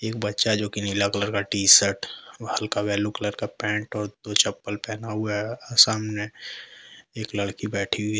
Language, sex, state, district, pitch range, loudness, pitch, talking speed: Hindi, male, Jharkhand, Deoghar, 100-110 Hz, -23 LUFS, 105 Hz, 205 wpm